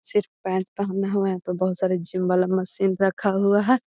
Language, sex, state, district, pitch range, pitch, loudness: Magahi, female, Bihar, Gaya, 185-200 Hz, 190 Hz, -23 LUFS